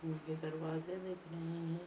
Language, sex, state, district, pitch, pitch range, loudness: Hindi, female, Uttar Pradesh, Deoria, 165 Hz, 160-170 Hz, -43 LUFS